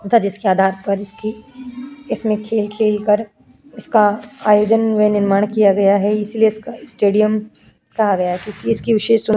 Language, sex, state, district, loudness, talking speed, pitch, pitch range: Hindi, female, Uttar Pradesh, Jyotiba Phule Nagar, -17 LUFS, 165 wpm, 215 Hz, 205-225 Hz